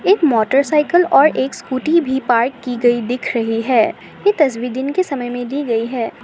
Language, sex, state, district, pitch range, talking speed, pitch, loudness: Hindi, female, Assam, Sonitpur, 240-300 Hz, 200 wpm, 260 Hz, -16 LUFS